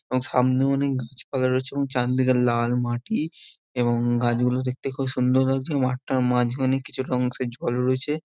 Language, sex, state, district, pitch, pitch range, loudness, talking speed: Bengali, male, West Bengal, Jhargram, 130 Hz, 125-135 Hz, -24 LUFS, 150 wpm